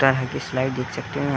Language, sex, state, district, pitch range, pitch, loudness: Hindi, male, Uttar Pradesh, Etah, 130-135 Hz, 130 Hz, -25 LUFS